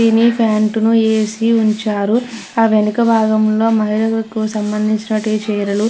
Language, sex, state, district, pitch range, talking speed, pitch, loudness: Telugu, female, Andhra Pradesh, Krishna, 215-225 Hz, 110 wpm, 220 Hz, -15 LUFS